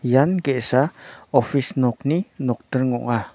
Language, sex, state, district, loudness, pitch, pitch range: Garo, male, Meghalaya, North Garo Hills, -21 LUFS, 130 Hz, 125-140 Hz